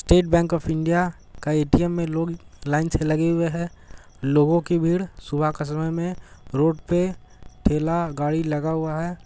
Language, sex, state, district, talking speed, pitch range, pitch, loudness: Hindi, male, Bihar, Gaya, 190 wpm, 155-170 Hz, 165 Hz, -23 LUFS